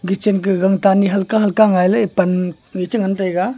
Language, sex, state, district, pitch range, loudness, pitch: Wancho, male, Arunachal Pradesh, Longding, 185-205 Hz, -16 LUFS, 195 Hz